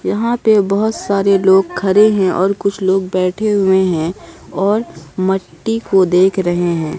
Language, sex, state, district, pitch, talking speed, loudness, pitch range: Hindi, female, Bihar, Katihar, 195 Hz, 165 wpm, -14 LUFS, 185-205 Hz